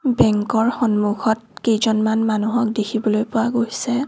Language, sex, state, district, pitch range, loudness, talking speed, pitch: Assamese, female, Assam, Kamrup Metropolitan, 215-235 Hz, -19 LUFS, 115 wpm, 225 Hz